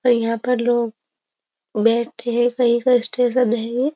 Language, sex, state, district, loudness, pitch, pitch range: Hindi, female, Uttar Pradesh, Jyotiba Phule Nagar, -19 LUFS, 240 Hz, 235-250 Hz